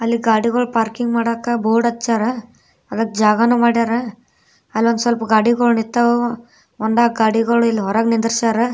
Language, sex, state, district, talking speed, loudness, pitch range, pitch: Kannada, female, Karnataka, Bijapur, 130 wpm, -17 LUFS, 225-235 Hz, 230 Hz